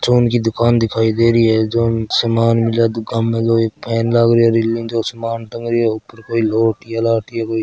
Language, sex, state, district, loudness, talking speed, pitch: Marwari, male, Rajasthan, Churu, -16 LUFS, 150 wpm, 115 Hz